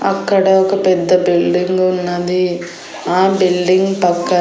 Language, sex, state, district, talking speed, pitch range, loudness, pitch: Telugu, female, Andhra Pradesh, Annamaya, 110 wpm, 175-190 Hz, -14 LUFS, 180 Hz